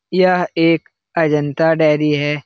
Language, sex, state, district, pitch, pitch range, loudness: Hindi, male, Bihar, Jahanabad, 160 Hz, 150-165 Hz, -16 LUFS